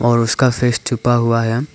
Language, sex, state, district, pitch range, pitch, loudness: Hindi, male, Arunachal Pradesh, Papum Pare, 115-125 Hz, 120 Hz, -16 LUFS